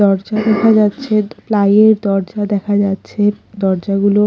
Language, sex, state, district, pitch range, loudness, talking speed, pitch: Bengali, female, Odisha, Khordha, 200-215 Hz, -14 LUFS, 125 wpm, 205 Hz